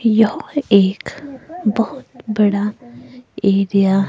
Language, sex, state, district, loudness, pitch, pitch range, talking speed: Hindi, female, Himachal Pradesh, Shimla, -17 LUFS, 215 Hz, 200-250 Hz, 90 wpm